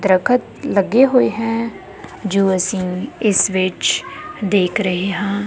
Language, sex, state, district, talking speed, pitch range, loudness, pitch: Punjabi, female, Punjab, Kapurthala, 120 wpm, 190-225 Hz, -17 LUFS, 200 Hz